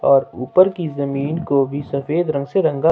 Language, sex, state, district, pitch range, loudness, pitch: Hindi, male, Jharkhand, Ranchi, 140-165 Hz, -19 LUFS, 140 Hz